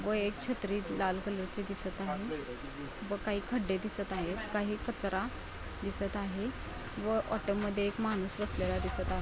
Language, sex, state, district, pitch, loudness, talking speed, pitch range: Marathi, female, Maharashtra, Chandrapur, 205 Hz, -36 LUFS, 150 wpm, 190-215 Hz